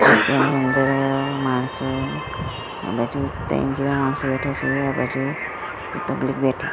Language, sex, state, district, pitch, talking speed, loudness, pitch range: Gujarati, female, Gujarat, Gandhinagar, 135 Hz, 100 wpm, -22 LUFS, 130-140 Hz